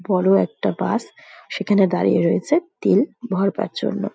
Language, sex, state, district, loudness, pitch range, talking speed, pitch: Bengali, female, West Bengal, Dakshin Dinajpur, -20 LUFS, 190-215 Hz, 130 wpm, 200 Hz